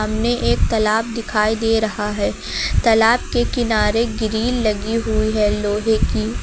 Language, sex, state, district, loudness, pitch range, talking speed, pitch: Hindi, female, Uttar Pradesh, Lucknow, -18 LUFS, 215-230 Hz, 150 wpm, 220 Hz